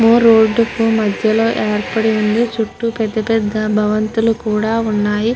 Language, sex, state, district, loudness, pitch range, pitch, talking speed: Telugu, female, Andhra Pradesh, Guntur, -15 LUFS, 215-225 Hz, 220 Hz, 145 wpm